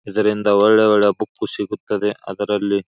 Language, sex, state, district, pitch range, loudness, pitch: Kannada, male, Karnataka, Gulbarga, 100-105 Hz, -18 LUFS, 105 Hz